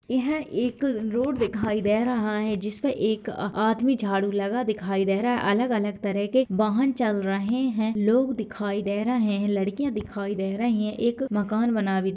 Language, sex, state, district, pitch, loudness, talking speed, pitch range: Hindi, female, Bihar, Kishanganj, 215 Hz, -25 LUFS, 190 wpm, 205-240 Hz